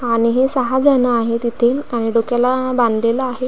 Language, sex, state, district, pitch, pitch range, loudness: Marathi, female, Maharashtra, Pune, 245 Hz, 230-255 Hz, -16 LUFS